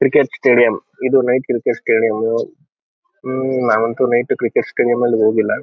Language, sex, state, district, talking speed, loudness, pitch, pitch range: Kannada, male, Karnataka, Chamarajanagar, 140 wpm, -16 LUFS, 120 Hz, 115-130 Hz